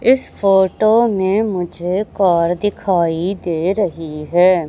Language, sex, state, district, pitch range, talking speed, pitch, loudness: Hindi, male, Madhya Pradesh, Katni, 175-205 Hz, 115 wpm, 185 Hz, -16 LUFS